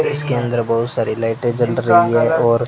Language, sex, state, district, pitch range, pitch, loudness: Hindi, male, Rajasthan, Bikaner, 115-120 Hz, 120 Hz, -17 LUFS